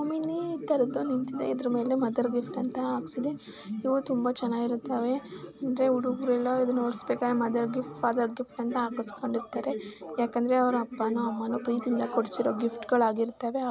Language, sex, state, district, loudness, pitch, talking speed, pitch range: Kannada, male, Karnataka, Mysore, -29 LUFS, 245 Hz, 140 wpm, 235-255 Hz